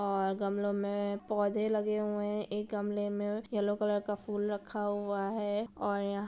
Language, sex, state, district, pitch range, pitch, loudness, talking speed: Hindi, female, Bihar, Saran, 205-210 Hz, 205 Hz, -34 LUFS, 190 wpm